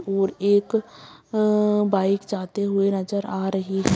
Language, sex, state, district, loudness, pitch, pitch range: Hindi, female, Bihar, Purnia, -23 LUFS, 200 Hz, 195-210 Hz